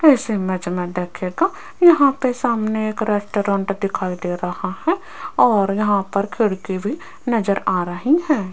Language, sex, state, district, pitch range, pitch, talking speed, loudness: Hindi, female, Rajasthan, Jaipur, 185-255 Hz, 205 Hz, 155 wpm, -20 LUFS